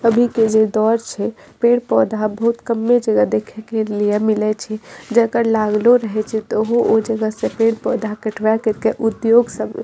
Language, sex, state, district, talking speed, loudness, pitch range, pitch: Maithili, female, Bihar, Madhepura, 175 wpm, -17 LUFS, 215-230 Hz, 220 Hz